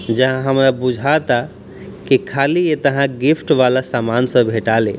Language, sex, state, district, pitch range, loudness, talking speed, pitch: Hindi, male, Bihar, East Champaran, 120-140 Hz, -16 LUFS, 155 wpm, 130 Hz